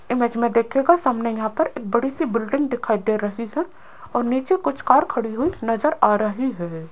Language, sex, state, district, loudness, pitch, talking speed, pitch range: Hindi, female, Rajasthan, Jaipur, -21 LUFS, 240 Hz, 210 wpm, 225-280 Hz